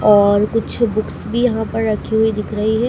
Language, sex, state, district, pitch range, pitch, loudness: Hindi, female, Madhya Pradesh, Dhar, 210-225 Hz, 220 Hz, -17 LUFS